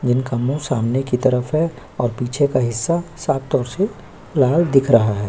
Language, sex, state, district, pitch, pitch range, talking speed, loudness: Hindi, male, Chhattisgarh, Korba, 130 Hz, 125-155 Hz, 195 wpm, -19 LUFS